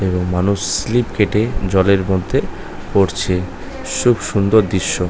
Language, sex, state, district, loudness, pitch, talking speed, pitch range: Bengali, male, West Bengal, North 24 Parganas, -17 LUFS, 100 Hz, 105 wpm, 95-110 Hz